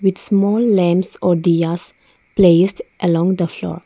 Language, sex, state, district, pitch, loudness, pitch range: English, female, Arunachal Pradesh, Lower Dibang Valley, 180 Hz, -16 LUFS, 175-195 Hz